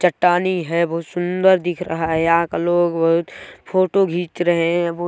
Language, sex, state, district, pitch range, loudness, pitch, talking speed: Hindi, male, Chhattisgarh, Balrampur, 170-180 Hz, -18 LUFS, 175 Hz, 175 wpm